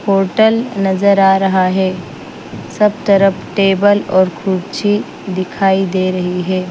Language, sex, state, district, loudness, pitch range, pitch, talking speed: Hindi, female, Bihar, Patna, -14 LUFS, 185-200 Hz, 195 Hz, 125 wpm